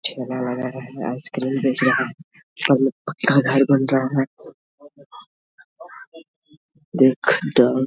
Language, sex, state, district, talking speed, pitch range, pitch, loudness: Hindi, male, Jharkhand, Sahebganj, 105 wpm, 130-145 Hz, 135 Hz, -20 LUFS